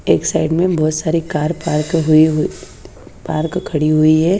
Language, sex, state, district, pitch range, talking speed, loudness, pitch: Hindi, female, Haryana, Charkhi Dadri, 155-165 Hz, 175 wpm, -16 LUFS, 155 Hz